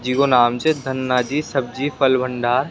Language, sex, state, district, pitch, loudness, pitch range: Rajasthani, male, Rajasthan, Nagaur, 130 Hz, -19 LUFS, 125-140 Hz